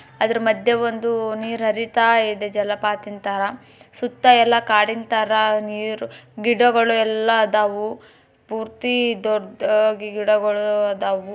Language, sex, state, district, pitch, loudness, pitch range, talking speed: Kannada, male, Karnataka, Bijapur, 220 Hz, -19 LUFS, 210-230 Hz, 100 wpm